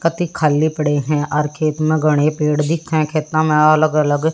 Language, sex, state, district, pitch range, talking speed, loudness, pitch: Hindi, female, Haryana, Jhajjar, 150-155 Hz, 180 wpm, -16 LUFS, 155 Hz